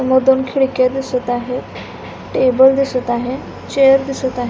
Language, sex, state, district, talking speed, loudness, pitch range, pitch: Marathi, female, Maharashtra, Pune, 145 wpm, -15 LUFS, 250-270 Hz, 260 Hz